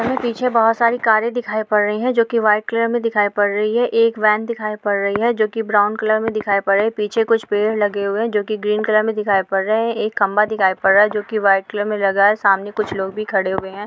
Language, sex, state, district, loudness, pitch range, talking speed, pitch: Hindi, female, Bihar, Vaishali, -17 LUFS, 205-225 Hz, 290 wpm, 215 Hz